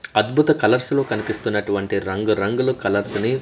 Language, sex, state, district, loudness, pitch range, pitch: Telugu, male, Andhra Pradesh, Manyam, -20 LUFS, 100-130 Hz, 105 Hz